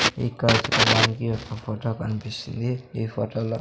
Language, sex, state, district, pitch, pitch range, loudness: Telugu, male, Andhra Pradesh, Sri Satya Sai, 115 Hz, 110-120 Hz, -23 LUFS